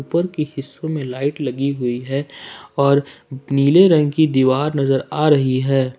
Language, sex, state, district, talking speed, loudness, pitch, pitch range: Hindi, male, Jharkhand, Ranchi, 170 wpm, -18 LUFS, 140 Hz, 135-150 Hz